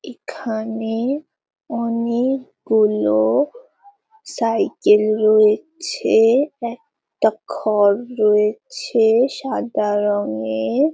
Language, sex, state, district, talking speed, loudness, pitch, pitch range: Bengali, female, West Bengal, Paschim Medinipur, 50 wpm, -19 LUFS, 230 Hz, 215-290 Hz